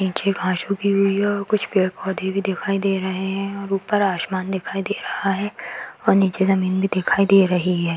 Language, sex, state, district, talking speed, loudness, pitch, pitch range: Hindi, female, Uttar Pradesh, Hamirpur, 220 wpm, -21 LUFS, 195 Hz, 190-195 Hz